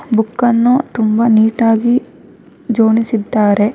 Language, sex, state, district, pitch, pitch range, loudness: Kannada, female, Karnataka, Bangalore, 225 Hz, 220-240 Hz, -13 LUFS